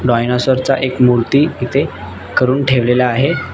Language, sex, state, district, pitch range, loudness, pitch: Marathi, male, Maharashtra, Nagpur, 120-135 Hz, -14 LUFS, 125 Hz